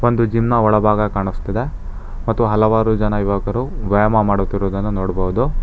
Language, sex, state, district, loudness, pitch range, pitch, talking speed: Kannada, male, Karnataka, Bangalore, -18 LUFS, 100-115 Hz, 105 Hz, 130 wpm